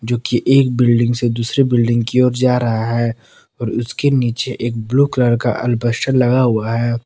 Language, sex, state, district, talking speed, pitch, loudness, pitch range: Hindi, male, Jharkhand, Palamu, 185 wpm, 120 Hz, -16 LUFS, 115-125 Hz